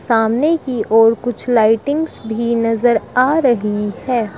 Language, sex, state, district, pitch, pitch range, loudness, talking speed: Hindi, male, Uttar Pradesh, Shamli, 230 Hz, 225-250 Hz, -16 LUFS, 135 wpm